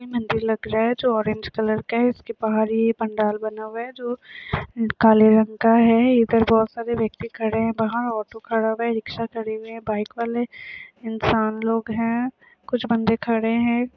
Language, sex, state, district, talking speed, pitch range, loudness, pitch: Hindi, female, Jharkhand, Sahebganj, 180 wpm, 220-235 Hz, -22 LUFS, 225 Hz